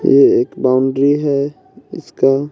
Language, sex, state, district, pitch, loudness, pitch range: Hindi, male, Bihar, West Champaran, 140 Hz, -14 LUFS, 135-145 Hz